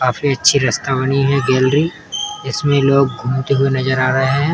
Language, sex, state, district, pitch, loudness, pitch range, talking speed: Hindi, male, Uttar Pradesh, Muzaffarnagar, 135 Hz, -16 LUFS, 130-140 Hz, 145 wpm